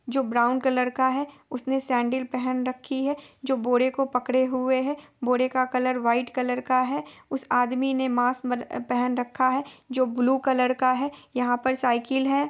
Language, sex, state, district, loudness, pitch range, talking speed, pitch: Hindi, female, Bihar, Gopalganj, -25 LUFS, 250-265 Hz, 190 wpm, 255 Hz